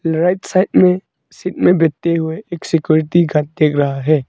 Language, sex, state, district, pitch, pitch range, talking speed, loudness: Hindi, male, Arunachal Pradesh, Longding, 165 Hz, 155-180 Hz, 180 wpm, -15 LUFS